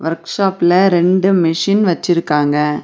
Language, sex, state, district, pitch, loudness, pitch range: Tamil, female, Tamil Nadu, Nilgiris, 175 Hz, -14 LUFS, 165-190 Hz